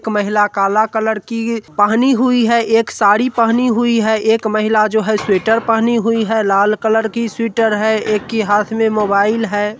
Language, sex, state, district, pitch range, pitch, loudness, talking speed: Hindi, male, Bihar, Supaul, 210-230 Hz, 220 Hz, -14 LUFS, 195 wpm